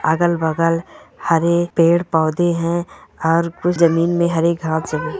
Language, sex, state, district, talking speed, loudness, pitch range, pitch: Hindi, male, Goa, North and South Goa, 80 wpm, -17 LUFS, 165-170 Hz, 170 Hz